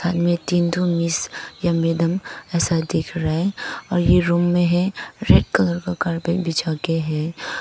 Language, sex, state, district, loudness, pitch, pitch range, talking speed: Hindi, female, Arunachal Pradesh, Papum Pare, -20 LUFS, 170 Hz, 165-175 Hz, 160 wpm